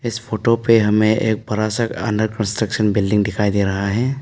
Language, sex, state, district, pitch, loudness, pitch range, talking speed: Hindi, male, Arunachal Pradesh, Papum Pare, 110 Hz, -18 LUFS, 105-115 Hz, 200 wpm